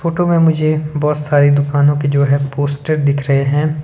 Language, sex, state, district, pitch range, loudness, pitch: Hindi, male, Himachal Pradesh, Shimla, 140-155 Hz, -14 LUFS, 145 Hz